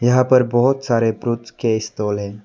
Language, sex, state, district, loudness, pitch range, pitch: Hindi, male, Arunachal Pradesh, Lower Dibang Valley, -18 LUFS, 110-125 Hz, 115 Hz